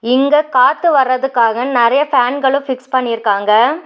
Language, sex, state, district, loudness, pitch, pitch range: Tamil, female, Tamil Nadu, Nilgiris, -13 LUFS, 255 Hz, 235-275 Hz